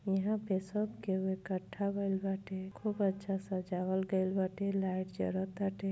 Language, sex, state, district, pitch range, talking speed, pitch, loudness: Bhojpuri, female, Uttar Pradesh, Gorakhpur, 190-200 Hz, 140 wpm, 190 Hz, -36 LUFS